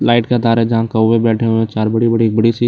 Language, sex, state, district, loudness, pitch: Hindi, male, Bihar, Lakhisarai, -14 LUFS, 115 Hz